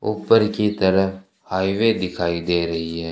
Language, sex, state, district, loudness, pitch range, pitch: Hindi, male, Rajasthan, Bikaner, -20 LUFS, 85-105 Hz, 95 Hz